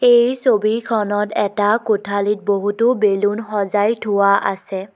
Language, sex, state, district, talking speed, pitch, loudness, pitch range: Assamese, female, Assam, Kamrup Metropolitan, 110 wpm, 205 Hz, -17 LUFS, 200-220 Hz